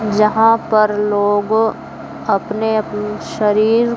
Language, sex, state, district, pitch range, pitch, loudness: Hindi, female, Haryana, Jhajjar, 210-225 Hz, 215 Hz, -16 LUFS